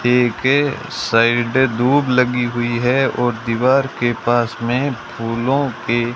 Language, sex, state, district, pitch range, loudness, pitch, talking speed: Hindi, male, Rajasthan, Bikaner, 120-130 Hz, -17 LUFS, 120 Hz, 145 wpm